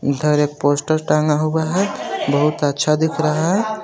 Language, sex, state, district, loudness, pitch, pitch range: Hindi, male, Jharkhand, Garhwa, -18 LUFS, 155 Hz, 150-160 Hz